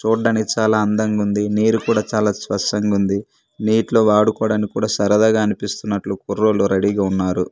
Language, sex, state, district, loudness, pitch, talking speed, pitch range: Telugu, male, Andhra Pradesh, Manyam, -18 LUFS, 105 Hz, 130 wpm, 100-110 Hz